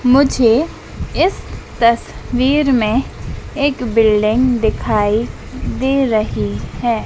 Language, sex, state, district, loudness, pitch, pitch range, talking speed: Hindi, female, Madhya Pradesh, Dhar, -16 LUFS, 235 Hz, 215-265 Hz, 85 wpm